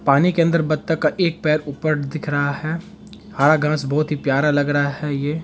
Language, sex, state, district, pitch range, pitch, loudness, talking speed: Hindi, male, Bihar, Araria, 145-160 Hz, 150 Hz, -20 LUFS, 220 wpm